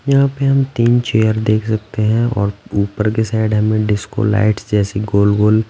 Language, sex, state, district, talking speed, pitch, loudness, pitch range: Hindi, male, Bihar, Patna, 180 wpm, 110 Hz, -16 LUFS, 105-115 Hz